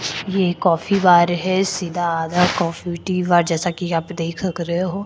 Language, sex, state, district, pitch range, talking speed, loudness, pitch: Hindi, female, Chhattisgarh, Korba, 170-185 Hz, 215 wpm, -19 LUFS, 175 Hz